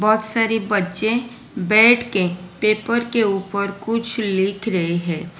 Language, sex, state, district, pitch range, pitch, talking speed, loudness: Hindi, female, Gujarat, Valsad, 190-225 Hz, 215 Hz, 135 wpm, -19 LUFS